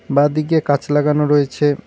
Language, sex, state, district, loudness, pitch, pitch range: Bengali, male, West Bengal, Cooch Behar, -16 LUFS, 150 Hz, 145-150 Hz